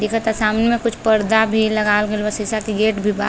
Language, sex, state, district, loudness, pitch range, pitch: Bhojpuri, female, Uttar Pradesh, Deoria, -18 LUFS, 210-220 Hz, 215 Hz